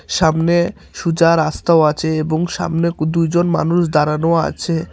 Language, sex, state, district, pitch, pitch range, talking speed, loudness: Bengali, male, Tripura, Unakoti, 165 Hz, 160-170 Hz, 120 wpm, -16 LUFS